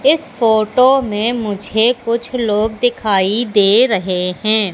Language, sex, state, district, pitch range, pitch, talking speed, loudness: Hindi, female, Madhya Pradesh, Katni, 210-240 Hz, 220 Hz, 125 wpm, -15 LUFS